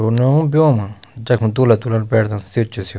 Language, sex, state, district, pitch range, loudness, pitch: Garhwali, male, Uttarakhand, Tehri Garhwal, 105-125 Hz, -16 LUFS, 115 Hz